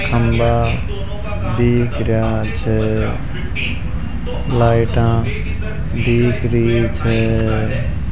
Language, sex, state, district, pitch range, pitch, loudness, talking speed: Hindi, male, Rajasthan, Jaipur, 85-115 Hz, 110 Hz, -18 LUFS, 65 wpm